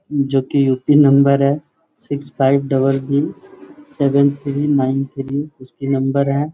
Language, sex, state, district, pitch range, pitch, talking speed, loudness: Hindi, male, Jharkhand, Sahebganj, 135-145 Hz, 140 Hz, 145 wpm, -17 LUFS